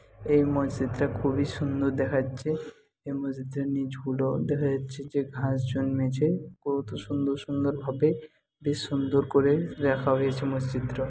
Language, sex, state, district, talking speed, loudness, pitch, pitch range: Bengali, male, West Bengal, Jhargram, 125 wpm, -28 LUFS, 140 Hz, 135-140 Hz